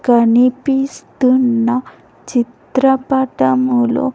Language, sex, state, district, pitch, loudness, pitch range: Telugu, female, Andhra Pradesh, Sri Satya Sai, 255 Hz, -15 LUFS, 240-265 Hz